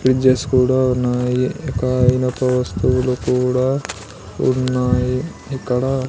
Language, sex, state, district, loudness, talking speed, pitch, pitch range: Telugu, male, Andhra Pradesh, Sri Satya Sai, -18 LUFS, 90 wpm, 125 Hz, 125-130 Hz